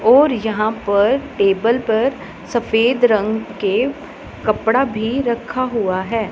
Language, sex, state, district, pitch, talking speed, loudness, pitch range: Hindi, female, Punjab, Pathankot, 230 Hz, 125 wpm, -17 LUFS, 215-255 Hz